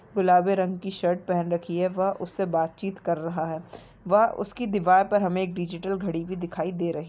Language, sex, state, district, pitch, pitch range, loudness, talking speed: Hindi, female, Maharashtra, Nagpur, 185 Hz, 170-195 Hz, -26 LUFS, 210 wpm